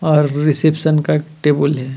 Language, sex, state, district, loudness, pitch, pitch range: Hindi, male, Jharkhand, Ranchi, -16 LUFS, 150 Hz, 145-155 Hz